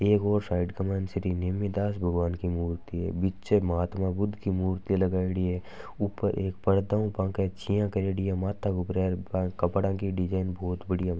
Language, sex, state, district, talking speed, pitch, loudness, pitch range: Marwari, male, Rajasthan, Nagaur, 195 wpm, 95 Hz, -29 LUFS, 90-100 Hz